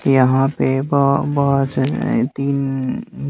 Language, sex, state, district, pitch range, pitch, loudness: Hindi, male, Bihar, West Champaran, 130-140 Hz, 135 Hz, -18 LUFS